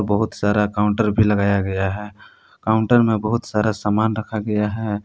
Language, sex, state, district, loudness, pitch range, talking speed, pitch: Hindi, male, Jharkhand, Palamu, -19 LUFS, 105-110 Hz, 180 wpm, 105 Hz